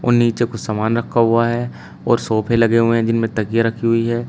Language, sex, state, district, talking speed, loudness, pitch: Hindi, male, Uttar Pradesh, Shamli, 225 wpm, -17 LUFS, 115 Hz